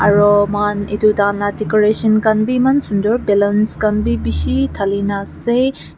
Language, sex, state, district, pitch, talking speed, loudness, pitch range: Nagamese, female, Nagaland, Kohima, 205 Hz, 150 wpm, -15 LUFS, 200-215 Hz